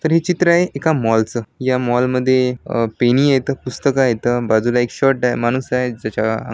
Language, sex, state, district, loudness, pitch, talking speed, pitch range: Marathi, male, Maharashtra, Chandrapur, -17 LUFS, 125 Hz, 195 wpm, 120-135 Hz